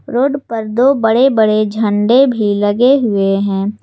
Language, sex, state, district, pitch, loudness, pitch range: Hindi, female, Jharkhand, Ranchi, 225 Hz, -13 LUFS, 205-260 Hz